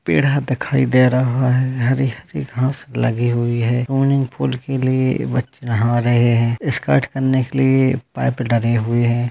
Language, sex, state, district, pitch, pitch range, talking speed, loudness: Hindi, male, Rajasthan, Churu, 125 Hz, 120-130 Hz, 175 wpm, -18 LUFS